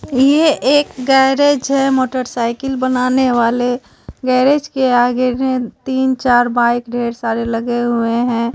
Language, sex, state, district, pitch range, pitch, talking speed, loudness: Hindi, female, Bihar, Katihar, 240-265 Hz, 255 Hz, 135 wpm, -15 LUFS